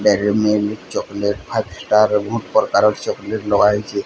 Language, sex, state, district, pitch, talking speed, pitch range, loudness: Odia, male, Odisha, Sambalpur, 105 Hz, 135 wpm, 100-105 Hz, -18 LUFS